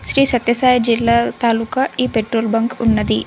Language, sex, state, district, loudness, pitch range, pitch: Telugu, female, Andhra Pradesh, Sri Satya Sai, -16 LUFS, 225-250 Hz, 235 Hz